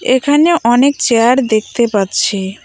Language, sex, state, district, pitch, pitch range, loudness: Bengali, female, West Bengal, Cooch Behar, 240 Hz, 215-270 Hz, -12 LUFS